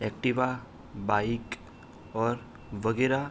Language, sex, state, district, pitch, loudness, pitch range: Hindi, male, Uttar Pradesh, Hamirpur, 115 Hz, -30 LUFS, 105-125 Hz